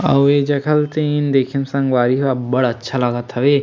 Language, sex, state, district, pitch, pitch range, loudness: Chhattisgarhi, male, Chhattisgarh, Sarguja, 135 Hz, 125-145 Hz, -17 LUFS